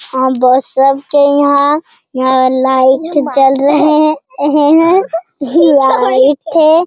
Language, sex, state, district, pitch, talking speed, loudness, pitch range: Hindi, female, Bihar, Jamui, 285 Hz, 115 wpm, -10 LUFS, 265-310 Hz